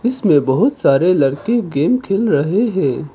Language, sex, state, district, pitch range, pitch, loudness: Hindi, male, Arunachal Pradesh, Papum Pare, 145-230 Hz, 195 Hz, -15 LUFS